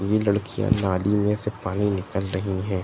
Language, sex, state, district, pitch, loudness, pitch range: Hindi, male, Bihar, East Champaran, 100 Hz, -24 LUFS, 95-105 Hz